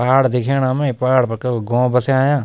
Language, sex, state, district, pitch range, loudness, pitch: Garhwali, male, Uttarakhand, Tehri Garhwal, 125-135 Hz, -17 LUFS, 130 Hz